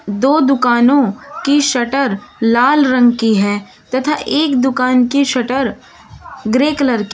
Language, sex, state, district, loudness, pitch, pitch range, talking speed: Hindi, female, Uttar Pradesh, Shamli, -14 LUFS, 255 Hz, 240-280 Hz, 135 wpm